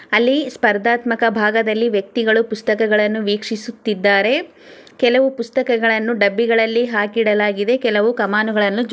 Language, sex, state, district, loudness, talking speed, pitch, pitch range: Kannada, female, Karnataka, Chamarajanagar, -17 LUFS, 95 wpm, 225 Hz, 210-235 Hz